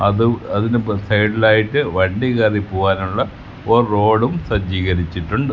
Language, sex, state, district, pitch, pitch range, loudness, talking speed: Malayalam, male, Kerala, Kasaragod, 105 Hz, 95-115 Hz, -17 LUFS, 110 wpm